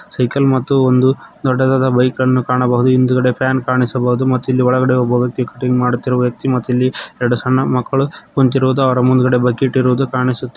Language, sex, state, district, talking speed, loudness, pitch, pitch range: Kannada, male, Karnataka, Koppal, 175 wpm, -15 LUFS, 130 Hz, 125-130 Hz